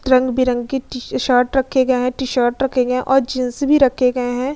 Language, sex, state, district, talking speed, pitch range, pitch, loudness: Hindi, female, Bihar, Vaishali, 210 wpm, 250-265 Hz, 255 Hz, -17 LUFS